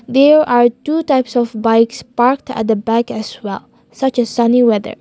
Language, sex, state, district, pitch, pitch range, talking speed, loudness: English, female, Nagaland, Kohima, 240 Hz, 230-260 Hz, 190 wpm, -14 LUFS